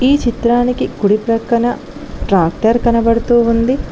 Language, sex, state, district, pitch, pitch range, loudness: Telugu, female, Telangana, Mahabubabad, 235 Hz, 225-240 Hz, -14 LUFS